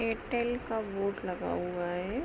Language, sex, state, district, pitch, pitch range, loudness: Hindi, female, Jharkhand, Sahebganj, 205 Hz, 180-235 Hz, -34 LUFS